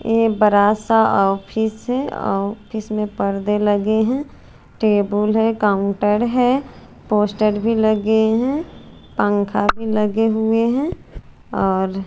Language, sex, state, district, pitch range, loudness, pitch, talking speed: Hindi, female, Chandigarh, Chandigarh, 205-225 Hz, -18 LUFS, 215 Hz, 120 wpm